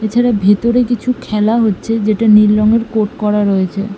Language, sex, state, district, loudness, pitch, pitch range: Bengali, female, West Bengal, Malda, -13 LUFS, 215 Hz, 210-230 Hz